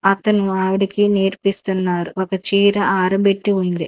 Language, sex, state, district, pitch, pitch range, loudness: Telugu, female, Andhra Pradesh, Manyam, 195 Hz, 190-200 Hz, -17 LUFS